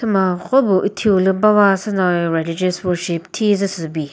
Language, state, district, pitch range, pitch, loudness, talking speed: Chakhesang, Nagaland, Dimapur, 175-205 Hz, 190 Hz, -17 LUFS, 145 wpm